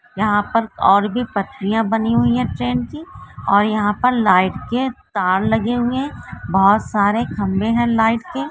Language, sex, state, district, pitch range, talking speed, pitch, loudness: Hindi, female, Maharashtra, Solapur, 195-235 Hz, 175 wpm, 215 Hz, -18 LUFS